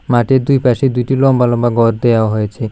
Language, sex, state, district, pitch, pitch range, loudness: Bengali, male, Tripura, South Tripura, 120 Hz, 115-130 Hz, -13 LUFS